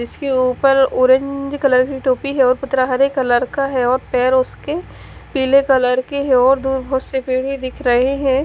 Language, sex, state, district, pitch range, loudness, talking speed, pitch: Hindi, female, Haryana, Charkhi Dadri, 255-275 Hz, -16 LUFS, 190 wpm, 265 Hz